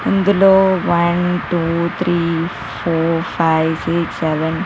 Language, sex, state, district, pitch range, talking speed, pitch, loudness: Telugu, female, Telangana, Karimnagar, 165-175 Hz, 140 wpm, 170 Hz, -16 LUFS